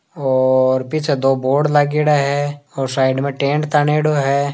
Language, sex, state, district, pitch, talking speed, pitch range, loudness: Hindi, male, Rajasthan, Nagaur, 140 Hz, 160 wpm, 135-150 Hz, -17 LUFS